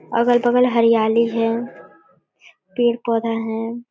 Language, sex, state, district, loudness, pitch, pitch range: Surgujia, female, Chhattisgarh, Sarguja, -18 LUFS, 230 Hz, 230-240 Hz